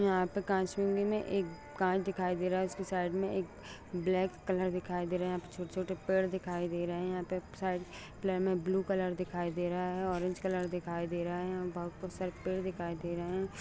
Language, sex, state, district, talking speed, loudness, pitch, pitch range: Hindi, female, Bihar, Jahanabad, 245 wpm, -35 LUFS, 185 Hz, 180-190 Hz